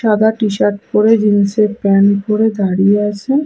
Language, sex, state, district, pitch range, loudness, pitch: Bengali, female, West Bengal, Malda, 200-220 Hz, -13 LUFS, 210 Hz